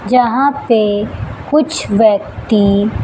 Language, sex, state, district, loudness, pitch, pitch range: Hindi, female, Chhattisgarh, Raipur, -13 LUFS, 225 Hz, 205-270 Hz